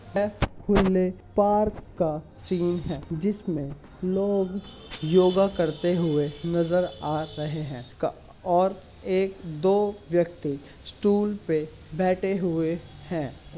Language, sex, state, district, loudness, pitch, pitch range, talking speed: Hindi, male, Uttar Pradesh, Hamirpur, -26 LUFS, 175 Hz, 155-195 Hz, 95 wpm